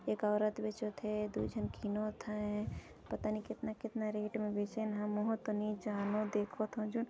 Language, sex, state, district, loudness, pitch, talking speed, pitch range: Chhattisgarhi, female, Chhattisgarh, Jashpur, -39 LUFS, 210 Hz, 175 wpm, 210-215 Hz